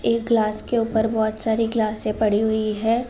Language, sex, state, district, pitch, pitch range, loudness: Hindi, female, Uttar Pradesh, Jalaun, 220 Hz, 215-230 Hz, -22 LUFS